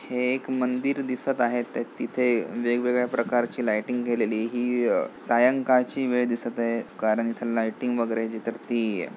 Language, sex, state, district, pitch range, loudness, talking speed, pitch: Marathi, male, Maharashtra, Pune, 115-125 Hz, -26 LUFS, 155 wpm, 120 Hz